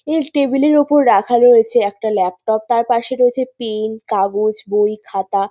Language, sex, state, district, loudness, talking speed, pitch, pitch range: Bengali, female, West Bengal, North 24 Parganas, -15 LUFS, 165 wpm, 225 Hz, 210-255 Hz